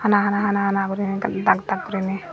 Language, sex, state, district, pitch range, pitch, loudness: Chakma, female, Tripura, Dhalai, 195-205 Hz, 200 Hz, -22 LUFS